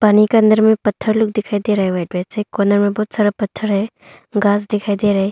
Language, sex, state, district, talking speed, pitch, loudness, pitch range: Hindi, female, Arunachal Pradesh, Longding, 235 wpm, 210 Hz, -16 LUFS, 205-215 Hz